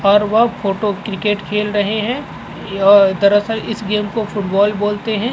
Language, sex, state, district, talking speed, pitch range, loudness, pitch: Hindi, male, Uttar Pradesh, Jalaun, 155 wpm, 200-215 Hz, -16 LUFS, 210 Hz